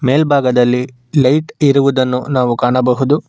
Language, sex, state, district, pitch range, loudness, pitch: Kannada, male, Karnataka, Bangalore, 125-140 Hz, -13 LUFS, 130 Hz